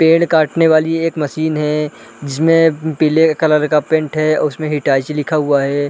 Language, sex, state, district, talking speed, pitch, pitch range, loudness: Hindi, male, Uttarakhand, Uttarkashi, 170 wpm, 155 Hz, 150-160 Hz, -15 LUFS